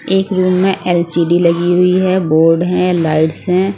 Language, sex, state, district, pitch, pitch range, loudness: Hindi, female, Bihar, West Champaran, 180 Hz, 170-185 Hz, -13 LUFS